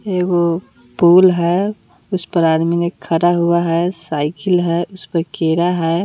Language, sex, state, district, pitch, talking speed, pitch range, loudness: Hindi, female, Bihar, West Champaran, 170 Hz, 140 wpm, 165-180 Hz, -16 LUFS